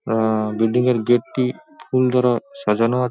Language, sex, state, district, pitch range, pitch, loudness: Bengali, male, West Bengal, Paschim Medinipur, 115-125 Hz, 125 Hz, -19 LUFS